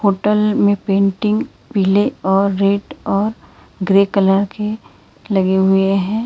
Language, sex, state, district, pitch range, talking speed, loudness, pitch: Hindi, female, Karnataka, Bangalore, 195-210 Hz, 125 wpm, -16 LUFS, 200 Hz